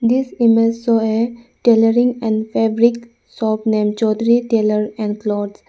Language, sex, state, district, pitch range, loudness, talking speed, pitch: English, female, Arunachal Pradesh, Lower Dibang Valley, 215-235 Hz, -16 LUFS, 135 wpm, 225 Hz